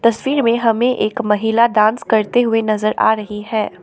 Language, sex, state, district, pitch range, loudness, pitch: Hindi, female, Assam, Sonitpur, 215-235 Hz, -16 LUFS, 225 Hz